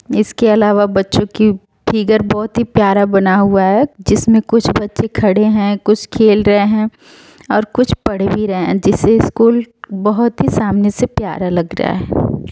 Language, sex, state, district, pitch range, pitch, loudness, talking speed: Hindi, female, Uttar Pradesh, Etah, 200-220 Hz, 210 Hz, -13 LUFS, 170 wpm